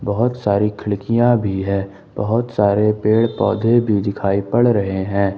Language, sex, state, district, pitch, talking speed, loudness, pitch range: Hindi, male, Jharkhand, Ranchi, 105 Hz, 155 wpm, -18 LUFS, 100-115 Hz